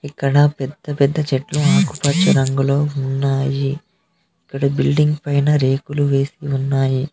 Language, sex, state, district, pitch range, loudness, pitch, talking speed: Telugu, male, Telangana, Mahabubabad, 135-150 Hz, -18 LUFS, 140 Hz, 110 wpm